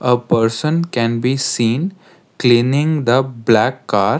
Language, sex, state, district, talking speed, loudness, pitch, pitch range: English, male, Karnataka, Bangalore, 130 wpm, -16 LUFS, 125 Hz, 115-150 Hz